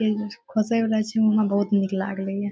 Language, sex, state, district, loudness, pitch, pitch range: Maithili, female, Bihar, Saharsa, -23 LUFS, 215 Hz, 200-220 Hz